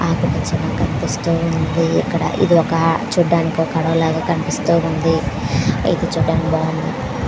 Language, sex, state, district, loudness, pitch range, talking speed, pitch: Telugu, female, Andhra Pradesh, Visakhapatnam, -17 LUFS, 160-170 Hz, 115 wpm, 165 Hz